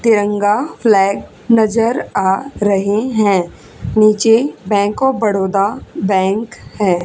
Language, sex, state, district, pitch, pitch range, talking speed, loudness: Hindi, female, Haryana, Charkhi Dadri, 205 Hz, 195-225 Hz, 100 wpm, -15 LUFS